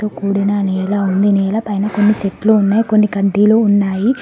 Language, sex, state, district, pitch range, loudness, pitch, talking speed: Telugu, female, Telangana, Mahabubabad, 200-215 Hz, -14 LUFS, 205 Hz, 155 wpm